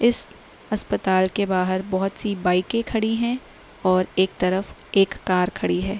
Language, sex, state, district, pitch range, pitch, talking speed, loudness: Hindi, female, Uttar Pradesh, Lalitpur, 185-215 Hz, 190 Hz, 170 wpm, -22 LUFS